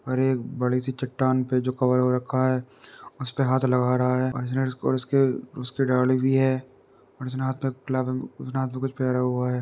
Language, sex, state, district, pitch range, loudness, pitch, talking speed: Hindi, male, Uttar Pradesh, Deoria, 125-130 Hz, -25 LUFS, 130 Hz, 185 wpm